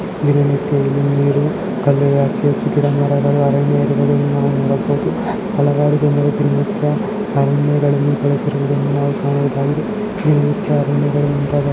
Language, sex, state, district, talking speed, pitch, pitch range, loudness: Kannada, male, Karnataka, Belgaum, 105 wpm, 140 Hz, 140-145 Hz, -16 LUFS